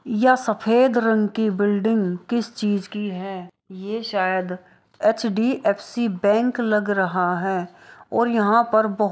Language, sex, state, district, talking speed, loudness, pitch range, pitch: Hindi, female, Bihar, Saharsa, 130 wpm, -21 LUFS, 195-230 Hz, 210 Hz